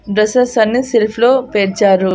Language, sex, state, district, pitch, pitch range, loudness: Telugu, female, Andhra Pradesh, Annamaya, 220 Hz, 200-250 Hz, -13 LUFS